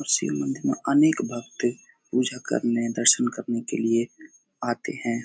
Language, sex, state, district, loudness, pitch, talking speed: Hindi, male, Uttar Pradesh, Etah, -24 LUFS, 120 Hz, 160 wpm